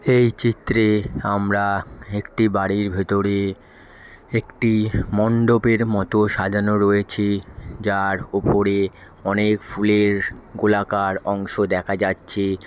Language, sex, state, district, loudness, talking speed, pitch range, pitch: Bengali, female, West Bengal, Malda, -20 LUFS, 95 wpm, 100-110 Hz, 100 Hz